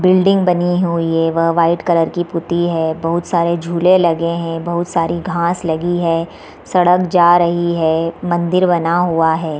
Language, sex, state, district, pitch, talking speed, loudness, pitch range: Hindi, female, Bihar, East Champaran, 170 Hz, 200 wpm, -15 LUFS, 165-175 Hz